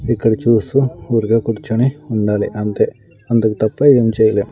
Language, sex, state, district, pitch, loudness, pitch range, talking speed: Telugu, male, Andhra Pradesh, Sri Satya Sai, 115 Hz, -16 LUFS, 110-120 Hz, 130 wpm